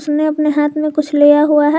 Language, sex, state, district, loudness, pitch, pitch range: Hindi, female, Jharkhand, Garhwa, -13 LUFS, 300 Hz, 295-305 Hz